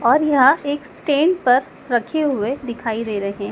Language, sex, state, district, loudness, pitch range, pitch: Hindi, female, Madhya Pradesh, Dhar, -19 LUFS, 235-290 Hz, 265 Hz